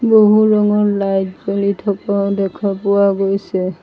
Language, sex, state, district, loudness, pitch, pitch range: Assamese, female, Assam, Sonitpur, -15 LUFS, 200 Hz, 195-205 Hz